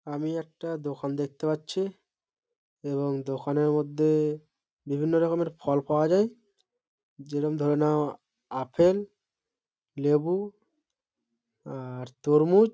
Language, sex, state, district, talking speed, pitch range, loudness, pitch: Bengali, male, West Bengal, Malda, 95 wpm, 145-180 Hz, -27 LUFS, 150 Hz